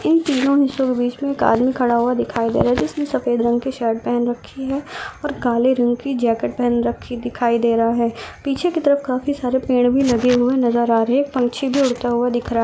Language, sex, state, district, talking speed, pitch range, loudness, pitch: Hindi, female, Rajasthan, Churu, 190 wpm, 240-270 Hz, -19 LUFS, 245 Hz